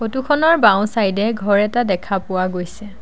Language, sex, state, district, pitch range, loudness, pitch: Assamese, female, Assam, Sonitpur, 190-230 Hz, -17 LUFS, 210 Hz